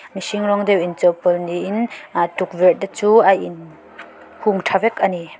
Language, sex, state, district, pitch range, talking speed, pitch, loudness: Mizo, female, Mizoram, Aizawl, 175-205 Hz, 165 wpm, 190 Hz, -18 LUFS